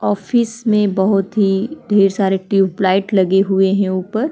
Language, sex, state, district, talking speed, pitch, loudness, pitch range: Hindi, female, Uttar Pradesh, Jalaun, 155 wpm, 195 Hz, -16 LUFS, 190-210 Hz